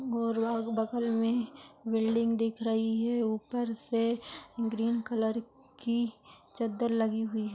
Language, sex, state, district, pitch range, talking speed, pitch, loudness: Hindi, female, Maharashtra, Nagpur, 225-235 Hz, 120 wpm, 230 Hz, -31 LUFS